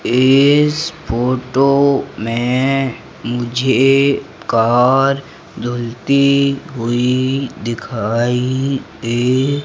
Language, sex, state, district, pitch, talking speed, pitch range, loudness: Hindi, male, Madhya Pradesh, Umaria, 130 Hz, 55 wpm, 120-140 Hz, -15 LUFS